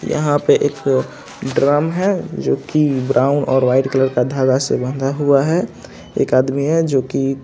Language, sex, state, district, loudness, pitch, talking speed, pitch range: Hindi, male, Bihar, Saharsa, -17 LUFS, 135 Hz, 170 wpm, 130-145 Hz